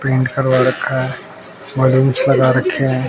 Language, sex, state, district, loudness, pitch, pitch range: Hindi, male, Bihar, West Champaran, -15 LUFS, 130 Hz, 130-135 Hz